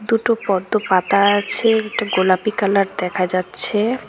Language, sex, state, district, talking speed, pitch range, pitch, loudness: Bengali, female, West Bengal, Cooch Behar, 130 wpm, 185-220 Hz, 205 Hz, -18 LUFS